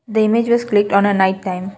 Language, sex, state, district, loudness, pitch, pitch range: English, female, Assam, Kamrup Metropolitan, -16 LUFS, 205 Hz, 190-220 Hz